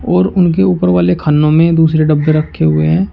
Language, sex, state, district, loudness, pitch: Hindi, male, Uttar Pradesh, Shamli, -11 LUFS, 155 Hz